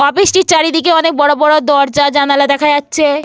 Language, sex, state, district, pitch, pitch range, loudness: Bengali, female, Jharkhand, Jamtara, 295 Hz, 285-320 Hz, -10 LUFS